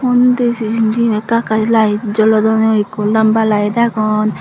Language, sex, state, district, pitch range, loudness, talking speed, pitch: Chakma, female, Tripura, Dhalai, 215-230 Hz, -13 LUFS, 135 wpm, 220 Hz